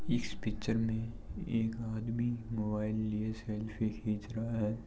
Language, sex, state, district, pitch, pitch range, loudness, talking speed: Hindi, male, Rajasthan, Churu, 110 Hz, 105-115 Hz, -36 LUFS, 135 wpm